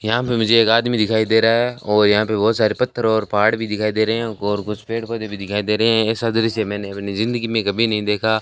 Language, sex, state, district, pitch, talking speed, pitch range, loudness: Hindi, male, Rajasthan, Bikaner, 110 Hz, 285 wpm, 105-115 Hz, -18 LUFS